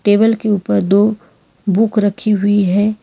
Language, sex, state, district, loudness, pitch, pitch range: Hindi, female, Karnataka, Bangalore, -15 LUFS, 210 Hz, 200-215 Hz